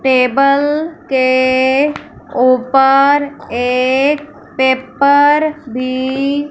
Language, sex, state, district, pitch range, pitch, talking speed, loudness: Hindi, female, Punjab, Fazilka, 255-290 Hz, 270 Hz, 55 wpm, -13 LUFS